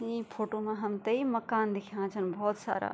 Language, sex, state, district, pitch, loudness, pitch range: Garhwali, female, Uttarakhand, Tehri Garhwal, 215 Hz, -33 LUFS, 205-230 Hz